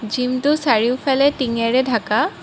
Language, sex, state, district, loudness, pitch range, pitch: Assamese, female, Assam, Kamrup Metropolitan, -18 LUFS, 230-275 Hz, 255 Hz